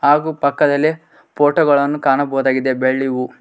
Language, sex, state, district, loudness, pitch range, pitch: Kannada, male, Karnataka, Koppal, -16 LUFS, 135-145 Hz, 140 Hz